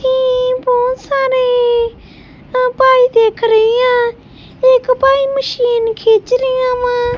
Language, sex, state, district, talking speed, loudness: Punjabi, female, Punjab, Kapurthala, 110 wpm, -13 LUFS